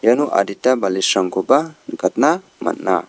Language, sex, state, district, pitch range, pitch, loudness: Garo, male, Meghalaya, West Garo Hills, 95-130 Hz, 100 Hz, -18 LUFS